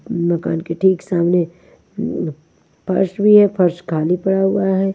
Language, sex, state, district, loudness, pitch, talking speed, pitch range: Hindi, female, Maharashtra, Washim, -17 LUFS, 180 Hz, 145 wpm, 170-190 Hz